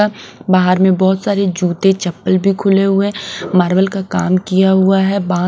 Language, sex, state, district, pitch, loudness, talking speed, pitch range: Hindi, female, Bihar, West Champaran, 190 Hz, -14 LUFS, 185 wpm, 185-195 Hz